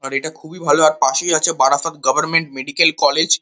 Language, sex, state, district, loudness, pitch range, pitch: Bengali, male, West Bengal, North 24 Parganas, -16 LUFS, 135-165 Hz, 155 Hz